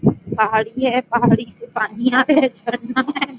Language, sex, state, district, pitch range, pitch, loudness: Hindi, female, Chhattisgarh, Rajnandgaon, 220-260 Hz, 240 Hz, -18 LUFS